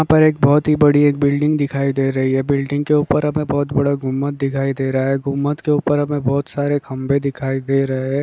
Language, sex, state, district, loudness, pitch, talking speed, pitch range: Hindi, male, Bihar, Kishanganj, -17 LUFS, 140 Hz, 245 wpm, 135-145 Hz